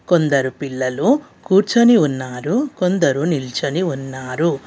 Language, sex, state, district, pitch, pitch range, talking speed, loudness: Telugu, female, Telangana, Hyderabad, 160 Hz, 135-195 Hz, 90 wpm, -18 LUFS